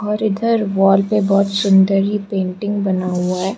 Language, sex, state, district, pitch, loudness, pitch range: Hindi, female, Arunachal Pradesh, Lower Dibang Valley, 195 Hz, -16 LUFS, 190-210 Hz